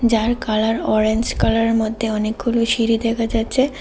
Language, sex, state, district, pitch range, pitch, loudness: Bengali, female, Tripura, West Tripura, 220-235 Hz, 225 Hz, -19 LUFS